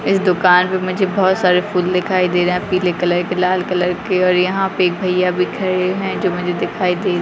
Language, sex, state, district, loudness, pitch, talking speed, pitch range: Hindi, female, Rajasthan, Nagaur, -16 LUFS, 180 Hz, 255 wpm, 180-185 Hz